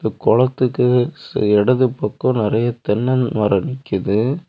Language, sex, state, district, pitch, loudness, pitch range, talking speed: Tamil, male, Tamil Nadu, Kanyakumari, 125 Hz, -18 LUFS, 105-130 Hz, 95 wpm